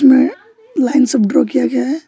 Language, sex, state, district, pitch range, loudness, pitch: Hindi, male, West Bengal, Alipurduar, 265-315 Hz, -14 LUFS, 280 Hz